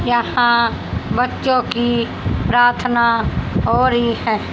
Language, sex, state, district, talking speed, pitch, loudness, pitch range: Hindi, female, Haryana, Jhajjar, 95 wpm, 240 Hz, -17 LUFS, 235-245 Hz